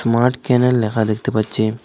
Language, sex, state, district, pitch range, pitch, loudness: Bengali, male, Assam, Hailakandi, 110-125 Hz, 115 Hz, -17 LUFS